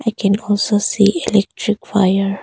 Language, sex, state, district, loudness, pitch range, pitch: English, female, Arunachal Pradesh, Longding, -16 LUFS, 200-215 Hz, 205 Hz